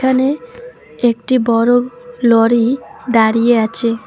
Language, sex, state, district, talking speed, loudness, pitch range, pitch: Bengali, female, West Bengal, Alipurduar, 90 wpm, -14 LUFS, 230-260 Hz, 240 Hz